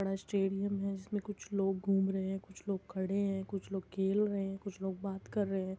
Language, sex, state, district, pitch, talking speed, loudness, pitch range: Hindi, female, Uttar Pradesh, Muzaffarnagar, 195 Hz, 260 wpm, -36 LUFS, 195-200 Hz